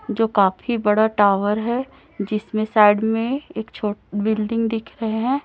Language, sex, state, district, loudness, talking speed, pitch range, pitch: Hindi, female, Chhattisgarh, Raipur, -20 LUFS, 155 wpm, 210-230 Hz, 220 Hz